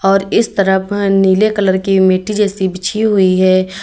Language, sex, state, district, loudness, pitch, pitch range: Hindi, female, Uttar Pradesh, Lalitpur, -13 LUFS, 195 Hz, 190-205 Hz